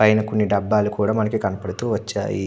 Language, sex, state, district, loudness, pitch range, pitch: Telugu, male, Andhra Pradesh, Anantapur, -21 LUFS, 105-110 Hz, 105 Hz